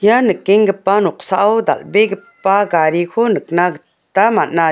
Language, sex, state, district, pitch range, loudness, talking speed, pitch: Garo, female, Meghalaya, West Garo Hills, 175-215 Hz, -14 LUFS, 115 wpm, 200 Hz